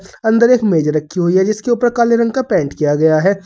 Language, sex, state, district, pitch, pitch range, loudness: Hindi, male, Uttar Pradesh, Saharanpur, 195 Hz, 160-235 Hz, -14 LUFS